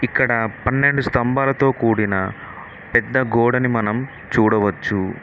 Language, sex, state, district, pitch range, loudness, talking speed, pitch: Telugu, male, Telangana, Mahabubabad, 110-130 Hz, -18 LUFS, 90 wpm, 120 Hz